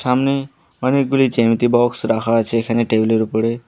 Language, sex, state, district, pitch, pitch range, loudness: Bengali, male, West Bengal, Alipurduar, 115 Hz, 115-130 Hz, -17 LUFS